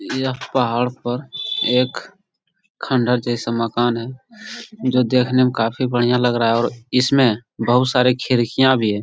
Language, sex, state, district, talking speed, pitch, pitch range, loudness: Hindi, male, Bihar, Jamui, 155 wpm, 125 Hz, 120-130 Hz, -18 LUFS